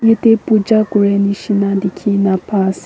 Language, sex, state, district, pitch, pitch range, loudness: Nagamese, female, Nagaland, Kohima, 200 Hz, 195-220 Hz, -14 LUFS